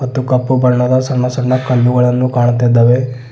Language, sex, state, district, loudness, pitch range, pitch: Kannada, male, Karnataka, Bidar, -13 LUFS, 125-130 Hz, 125 Hz